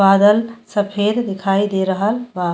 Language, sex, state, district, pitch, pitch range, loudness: Bhojpuri, female, Uttar Pradesh, Deoria, 205 Hz, 195-220 Hz, -17 LUFS